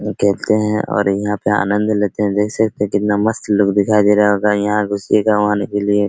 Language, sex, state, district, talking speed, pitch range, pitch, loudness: Hindi, male, Bihar, Araria, 225 wpm, 100-105 Hz, 105 Hz, -16 LUFS